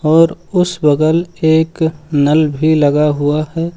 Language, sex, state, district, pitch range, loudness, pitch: Hindi, male, Uttar Pradesh, Lucknow, 150-165 Hz, -13 LUFS, 160 Hz